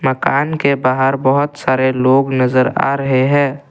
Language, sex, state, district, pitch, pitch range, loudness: Hindi, male, Assam, Kamrup Metropolitan, 135 Hz, 130-140 Hz, -14 LUFS